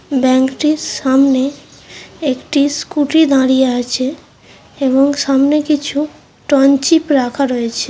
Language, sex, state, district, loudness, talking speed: Bengali, female, West Bengal, Purulia, -14 LUFS, 105 wpm